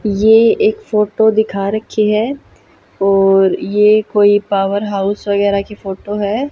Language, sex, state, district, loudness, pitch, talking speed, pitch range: Hindi, female, Haryana, Jhajjar, -14 LUFS, 210 Hz, 130 wpm, 200-215 Hz